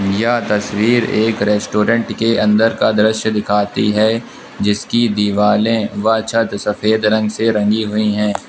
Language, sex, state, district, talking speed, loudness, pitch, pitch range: Hindi, male, Uttar Pradesh, Lucknow, 140 wpm, -15 LUFS, 105 Hz, 105-110 Hz